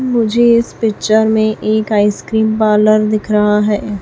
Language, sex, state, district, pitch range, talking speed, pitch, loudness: Hindi, female, Chhattisgarh, Raipur, 210-220 Hz, 165 wpm, 215 Hz, -13 LUFS